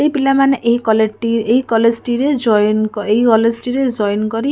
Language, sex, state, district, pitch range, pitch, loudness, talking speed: Odia, female, Odisha, Khordha, 220-255 Hz, 230 Hz, -15 LUFS, 185 wpm